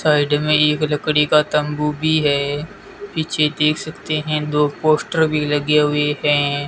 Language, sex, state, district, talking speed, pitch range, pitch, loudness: Hindi, male, Rajasthan, Bikaner, 160 wpm, 150-155 Hz, 150 Hz, -18 LUFS